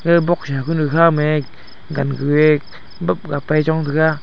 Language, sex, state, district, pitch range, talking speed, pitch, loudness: Wancho, male, Arunachal Pradesh, Longding, 145-160 Hz, 125 wpm, 155 Hz, -17 LUFS